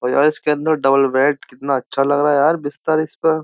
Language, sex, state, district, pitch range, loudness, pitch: Hindi, male, Uttar Pradesh, Jyotiba Phule Nagar, 135-155 Hz, -17 LUFS, 145 Hz